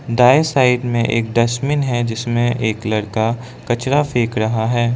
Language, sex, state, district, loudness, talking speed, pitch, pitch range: Hindi, male, Arunachal Pradesh, Lower Dibang Valley, -17 LUFS, 155 wpm, 120 Hz, 115-125 Hz